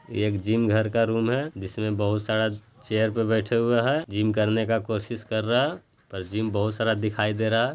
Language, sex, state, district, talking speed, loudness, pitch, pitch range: Hindi, male, Bihar, Jahanabad, 215 wpm, -25 LUFS, 110 Hz, 105-115 Hz